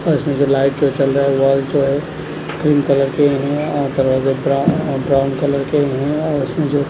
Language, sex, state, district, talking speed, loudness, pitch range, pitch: Hindi, male, Punjab, Kapurthala, 225 wpm, -16 LUFS, 135-145 Hz, 140 Hz